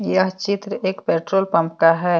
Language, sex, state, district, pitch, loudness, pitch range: Hindi, female, Jharkhand, Deoghar, 185 Hz, -19 LUFS, 165-195 Hz